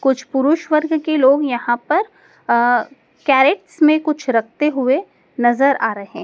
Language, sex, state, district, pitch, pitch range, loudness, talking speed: Hindi, female, Madhya Pradesh, Dhar, 275 Hz, 245-305 Hz, -17 LUFS, 165 wpm